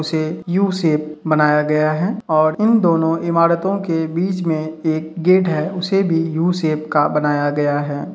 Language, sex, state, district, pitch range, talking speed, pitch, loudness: Hindi, male, Uttar Pradesh, Hamirpur, 155-175 Hz, 160 wpm, 160 Hz, -17 LUFS